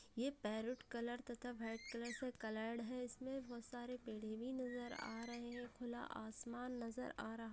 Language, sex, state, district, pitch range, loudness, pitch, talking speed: Hindi, female, Bihar, Purnia, 230-250 Hz, -48 LUFS, 240 Hz, 175 wpm